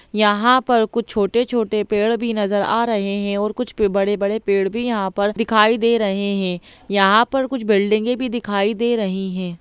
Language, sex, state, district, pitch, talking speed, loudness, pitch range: Hindi, female, Bihar, Jahanabad, 210 Hz, 195 wpm, -18 LUFS, 200-235 Hz